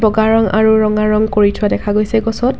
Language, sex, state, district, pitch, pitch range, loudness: Assamese, female, Assam, Kamrup Metropolitan, 215 Hz, 215-225 Hz, -13 LUFS